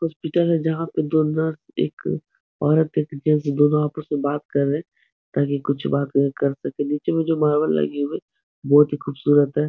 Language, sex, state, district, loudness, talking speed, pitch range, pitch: Hindi, male, Uttar Pradesh, Etah, -21 LUFS, 205 wpm, 140-155 Hz, 150 Hz